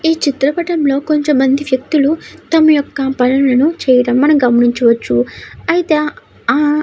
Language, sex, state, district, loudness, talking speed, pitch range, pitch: Telugu, female, Andhra Pradesh, Krishna, -13 LUFS, 115 wpm, 255-300 Hz, 280 Hz